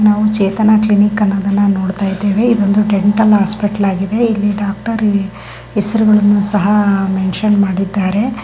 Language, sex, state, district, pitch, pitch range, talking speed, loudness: Kannada, female, Karnataka, Bellary, 205 Hz, 200-210 Hz, 120 wpm, -13 LUFS